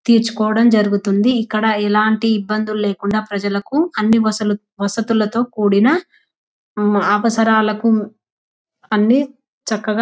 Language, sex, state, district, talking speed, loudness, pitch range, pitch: Telugu, female, Telangana, Nalgonda, 85 wpm, -16 LUFS, 210-230 Hz, 215 Hz